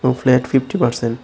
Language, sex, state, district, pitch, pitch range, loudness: Bengali, male, Tripura, West Tripura, 125 Hz, 120-130 Hz, -17 LUFS